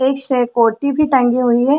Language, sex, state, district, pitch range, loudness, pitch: Hindi, female, Chhattisgarh, Bilaspur, 245-280 Hz, -14 LUFS, 255 Hz